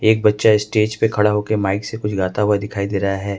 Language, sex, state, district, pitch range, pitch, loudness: Hindi, male, Jharkhand, Ranchi, 100-110 Hz, 105 Hz, -18 LUFS